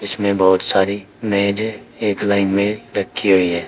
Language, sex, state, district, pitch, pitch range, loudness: Hindi, male, Uttar Pradesh, Saharanpur, 100 Hz, 95-105 Hz, -18 LUFS